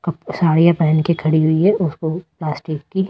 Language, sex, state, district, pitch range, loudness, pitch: Hindi, female, Delhi, New Delhi, 155-170 Hz, -17 LUFS, 160 Hz